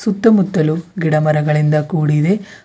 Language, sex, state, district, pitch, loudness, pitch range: Kannada, female, Karnataka, Bidar, 160 Hz, -15 LUFS, 150-195 Hz